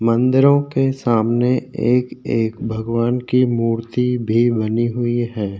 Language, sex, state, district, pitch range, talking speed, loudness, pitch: Hindi, male, Uttarakhand, Tehri Garhwal, 115-125 Hz, 120 wpm, -18 LUFS, 120 Hz